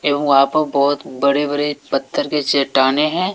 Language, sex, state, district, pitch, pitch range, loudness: Hindi, male, Bihar, West Champaran, 145 Hz, 140-150 Hz, -17 LUFS